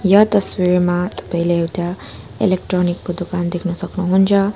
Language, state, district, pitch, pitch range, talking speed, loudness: Nepali, West Bengal, Darjeeling, 180 Hz, 175-190 Hz, 120 wpm, -18 LUFS